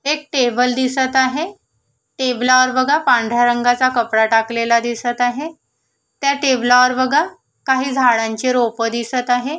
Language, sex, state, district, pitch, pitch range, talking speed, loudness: Marathi, female, Maharashtra, Solapur, 250 Hz, 240-265 Hz, 125 wpm, -16 LUFS